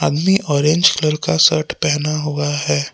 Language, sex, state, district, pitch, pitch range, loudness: Hindi, male, Jharkhand, Palamu, 150 Hz, 145-155 Hz, -16 LUFS